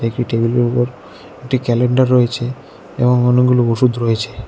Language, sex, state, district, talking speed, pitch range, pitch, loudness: Bengali, male, Tripura, West Tripura, 135 wpm, 120-125 Hz, 125 Hz, -15 LUFS